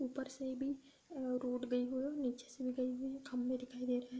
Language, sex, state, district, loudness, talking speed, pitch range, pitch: Hindi, female, Uttar Pradesh, Gorakhpur, -41 LUFS, 285 wpm, 250-270 Hz, 255 Hz